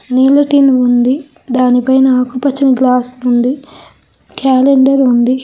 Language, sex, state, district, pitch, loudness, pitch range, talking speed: Telugu, female, Telangana, Hyderabad, 260 Hz, -11 LUFS, 250-275 Hz, 100 wpm